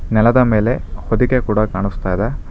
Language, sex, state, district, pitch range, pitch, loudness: Kannada, male, Karnataka, Bangalore, 100-120 Hz, 110 Hz, -17 LUFS